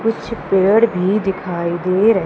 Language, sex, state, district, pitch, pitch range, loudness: Hindi, female, Madhya Pradesh, Umaria, 195 Hz, 180-220 Hz, -17 LUFS